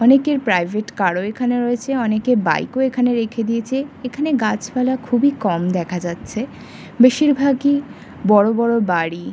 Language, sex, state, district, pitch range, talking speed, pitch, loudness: Bengali, female, West Bengal, Kolkata, 210-260 Hz, 150 wpm, 235 Hz, -18 LUFS